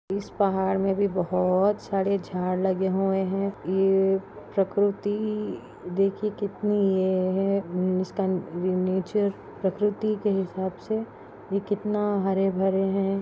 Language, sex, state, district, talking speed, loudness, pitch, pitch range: Hindi, female, Chhattisgarh, Rajnandgaon, 120 wpm, -26 LUFS, 195 Hz, 190-200 Hz